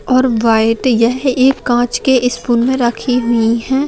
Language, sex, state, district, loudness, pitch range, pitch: Hindi, female, Bihar, Lakhisarai, -13 LUFS, 230-260 Hz, 245 Hz